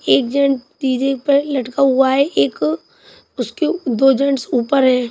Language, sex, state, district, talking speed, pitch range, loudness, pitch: Hindi, female, Punjab, Kapurthala, 150 wpm, 250-280 Hz, -16 LUFS, 270 Hz